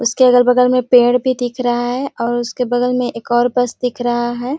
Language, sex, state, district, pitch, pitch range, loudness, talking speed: Hindi, female, Chhattisgarh, Sarguja, 245 Hz, 240-250 Hz, -15 LUFS, 235 wpm